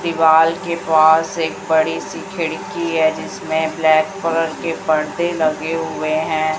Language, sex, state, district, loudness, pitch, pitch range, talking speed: Hindi, female, Chhattisgarh, Raipur, -17 LUFS, 160 Hz, 155-165 Hz, 145 wpm